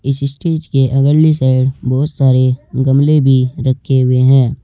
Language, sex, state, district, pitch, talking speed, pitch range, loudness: Hindi, male, Uttar Pradesh, Saharanpur, 135 Hz, 155 wpm, 130-140 Hz, -13 LUFS